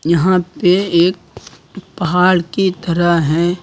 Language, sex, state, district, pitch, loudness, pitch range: Hindi, male, Uttar Pradesh, Lucknow, 175 Hz, -14 LUFS, 170-185 Hz